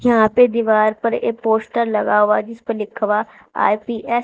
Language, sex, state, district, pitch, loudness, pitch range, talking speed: Hindi, female, Haryana, Charkhi Dadri, 225 Hz, -18 LUFS, 215-235 Hz, 185 wpm